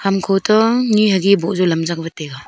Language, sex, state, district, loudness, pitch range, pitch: Wancho, female, Arunachal Pradesh, Longding, -15 LUFS, 170-210 Hz, 195 Hz